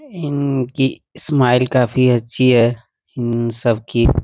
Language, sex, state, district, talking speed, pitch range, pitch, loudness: Hindi, male, Bihar, Saran, 100 wpm, 120-130 Hz, 125 Hz, -17 LUFS